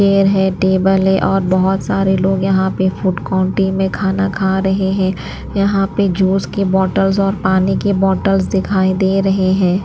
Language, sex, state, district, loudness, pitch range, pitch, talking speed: Hindi, female, Haryana, Rohtak, -15 LUFS, 190-195 Hz, 190 Hz, 185 wpm